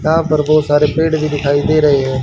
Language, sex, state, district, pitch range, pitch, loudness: Hindi, male, Haryana, Charkhi Dadri, 145-155 Hz, 150 Hz, -13 LUFS